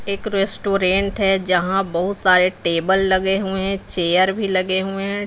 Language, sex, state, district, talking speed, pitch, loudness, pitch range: Hindi, female, Bihar, Patna, 170 wpm, 190 Hz, -17 LUFS, 185-195 Hz